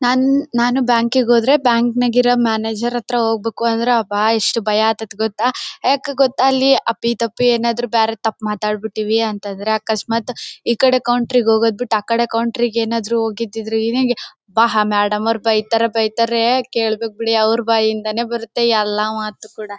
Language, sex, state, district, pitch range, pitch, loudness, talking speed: Kannada, female, Karnataka, Bellary, 220-240 Hz, 230 Hz, -17 LUFS, 150 wpm